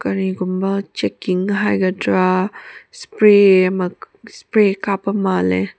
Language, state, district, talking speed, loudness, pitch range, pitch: Manipuri, Manipur, Imphal West, 75 wpm, -17 LUFS, 185-205 Hz, 190 Hz